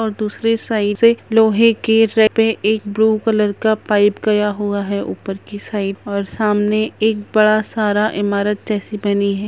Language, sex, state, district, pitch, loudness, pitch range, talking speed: Hindi, female, Chhattisgarh, Raigarh, 215 Hz, -16 LUFS, 205-220 Hz, 165 wpm